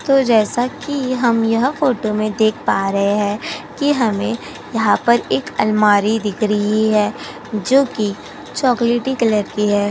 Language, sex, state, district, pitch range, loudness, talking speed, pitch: Hindi, female, Uttar Pradesh, Jyotiba Phule Nagar, 210-250 Hz, -17 LUFS, 150 wpm, 220 Hz